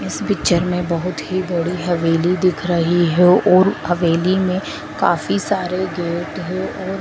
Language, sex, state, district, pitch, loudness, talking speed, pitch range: Hindi, female, Madhya Pradesh, Dhar, 175 Hz, -18 LUFS, 155 wpm, 170-185 Hz